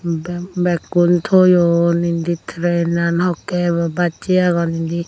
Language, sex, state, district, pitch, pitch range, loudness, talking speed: Chakma, female, Tripura, Unakoti, 175 Hz, 170-175 Hz, -17 LUFS, 120 wpm